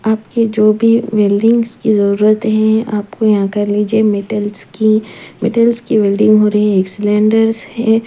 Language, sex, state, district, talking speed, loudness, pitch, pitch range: Hindi, female, Punjab, Pathankot, 165 wpm, -13 LUFS, 215 Hz, 205-225 Hz